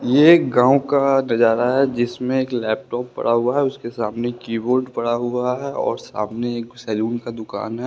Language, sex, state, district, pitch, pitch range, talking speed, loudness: Hindi, male, Bihar, West Champaran, 120 Hz, 115-130 Hz, 185 wpm, -20 LUFS